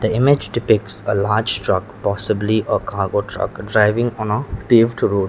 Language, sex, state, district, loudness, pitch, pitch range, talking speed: English, male, Sikkim, Gangtok, -18 LUFS, 105 Hz, 100-115 Hz, 160 wpm